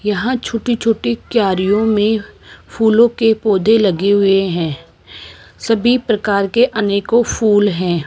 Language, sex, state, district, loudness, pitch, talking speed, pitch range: Hindi, female, Rajasthan, Jaipur, -15 LUFS, 210 Hz, 125 wpm, 195-230 Hz